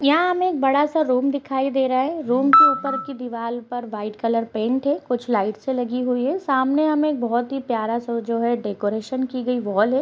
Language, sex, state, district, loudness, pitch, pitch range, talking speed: Hindi, female, Uttar Pradesh, Gorakhpur, -21 LUFS, 255 Hz, 235-275 Hz, 235 wpm